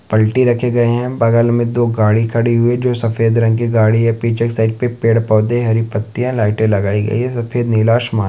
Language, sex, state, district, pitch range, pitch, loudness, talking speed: Hindi, male, Chhattisgarh, Balrampur, 110-120 Hz, 115 Hz, -15 LUFS, 230 wpm